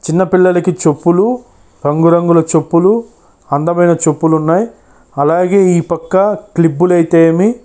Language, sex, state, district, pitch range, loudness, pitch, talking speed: Telugu, male, Andhra Pradesh, Chittoor, 160-185 Hz, -12 LUFS, 170 Hz, 100 wpm